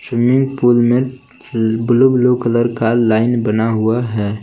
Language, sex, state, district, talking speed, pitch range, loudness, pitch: Hindi, male, Jharkhand, Palamu, 150 wpm, 115-125 Hz, -15 LUFS, 120 Hz